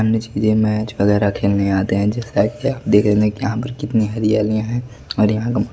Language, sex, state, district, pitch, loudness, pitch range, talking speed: Hindi, male, Delhi, New Delhi, 110 Hz, -18 LUFS, 105-115 Hz, 200 wpm